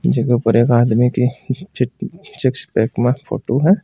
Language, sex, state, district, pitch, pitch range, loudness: Marwari, male, Rajasthan, Churu, 125 Hz, 120-130 Hz, -17 LUFS